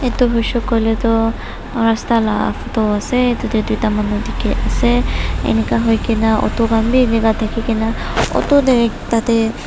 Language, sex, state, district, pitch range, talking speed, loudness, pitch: Nagamese, female, Nagaland, Dimapur, 215-235 Hz, 150 wpm, -16 LUFS, 225 Hz